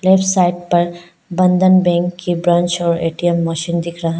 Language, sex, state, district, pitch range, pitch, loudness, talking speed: Hindi, female, Arunachal Pradesh, Lower Dibang Valley, 170-180 Hz, 175 Hz, -15 LUFS, 185 wpm